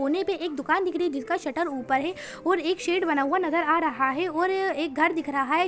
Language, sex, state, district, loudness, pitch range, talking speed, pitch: Hindi, female, Bihar, Saran, -26 LUFS, 295-355 Hz, 245 wpm, 330 Hz